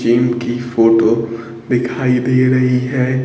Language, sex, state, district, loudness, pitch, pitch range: Hindi, male, Bihar, Kaimur, -15 LUFS, 120 Hz, 115-125 Hz